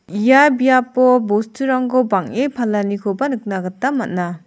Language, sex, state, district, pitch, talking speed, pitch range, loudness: Garo, female, Meghalaya, South Garo Hills, 240 Hz, 105 wpm, 200-260 Hz, -16 LUFS